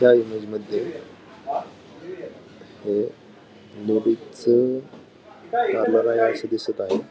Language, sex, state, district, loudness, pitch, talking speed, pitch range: Marathi, male, Maharashtra, Pune, -23 LUFS, 115 Hz, 70 wpm, 110-130 Hz